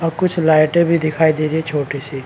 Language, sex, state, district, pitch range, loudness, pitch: Hindi, male, Maharashtra, Chandrapur, 155-165 Hz, -16 LUFS, 155 Hz